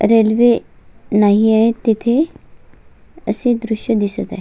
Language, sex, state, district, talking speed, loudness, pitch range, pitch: Marathi, female, Maharashtra, Solapur, 95 wpm, -15 LUFS, 220-240 Hz, 225 Hz